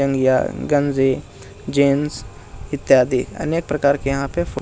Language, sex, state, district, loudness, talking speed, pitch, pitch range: Hindi, male, Bihar, Jahanabad, -19 LUFS, 145 wpm, 140 Hz, 130-145 Hz